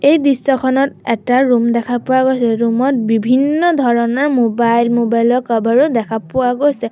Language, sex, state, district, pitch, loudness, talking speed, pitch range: Assamese, female, Assam, Sonitpur, 245 Hz, -14 LUFS, 140 wpm, 235-265 Hz